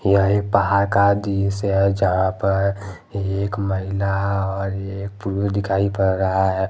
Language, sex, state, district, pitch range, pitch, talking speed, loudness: Hindi, male, Jharkhand, Deoghar, 95-100 Hz, 100 Hz, 150 wpm, -20 LUFS